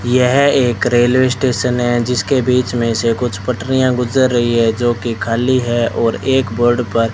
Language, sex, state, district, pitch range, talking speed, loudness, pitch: Hindi, male, Rajasthan, Bikaner, 115-125 Hz, 195 wpm, -15 LUFS, 120 Hz